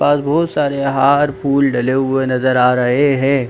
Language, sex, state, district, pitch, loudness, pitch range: Hindi, male, Jharkhand, Sahebganj, 135 Hz, -15 LUFS, 130-140 Hz